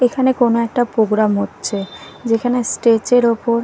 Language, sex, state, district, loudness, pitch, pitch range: Bengali, female, Odisha, Nuapada, -16 LUFS, 235 Hz, 220-245 Hz